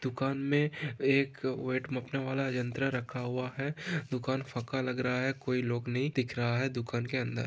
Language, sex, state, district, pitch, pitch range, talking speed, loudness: Hindi, male, Maharashtra, Pune, 130 Hz, 125-135 Hz, 185 wpm, -33 LUFS